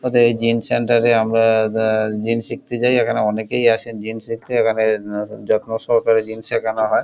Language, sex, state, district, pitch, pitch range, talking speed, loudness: Bengali, male, West Bengal, Kolkata, 115 Hz, 110-115 Hz, 170 wpm, -18 LUFS